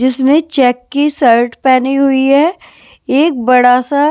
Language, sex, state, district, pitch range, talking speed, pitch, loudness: Hindi, female, Bihar, West Champaran, 250-290 Hz, 160 wpm, 270 Hz, -11 LUFS